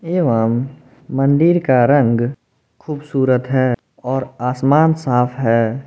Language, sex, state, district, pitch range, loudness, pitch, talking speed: Hindi, male, Jharkhand, Palamu, 125-145 Hz, -16 LUFS, 130 Hz, 100 wpm